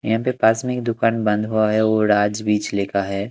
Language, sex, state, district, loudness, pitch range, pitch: Hindi, male, Punjab, Kapurthala, -19 LUFS, 105-115 Hz, 110 Hz